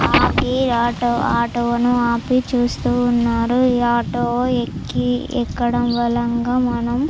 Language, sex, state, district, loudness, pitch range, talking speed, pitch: Telugu, female, Andhra Pradesh, Chittoor, -18 LUFS, 235-245 Hz, 110 wpm, 240 Hz